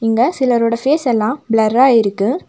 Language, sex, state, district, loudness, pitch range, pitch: Tamil, female, Tamil Nadu, Nilgiris, -14 LUFS, 225-265 Hz, 235 Hz